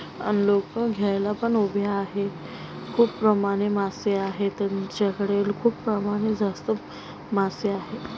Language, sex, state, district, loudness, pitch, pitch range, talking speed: Marathi, female, Maharashtra, Aurangabad, -25 LUFS, 205 Hz, 200-215 Hz, 115 wpm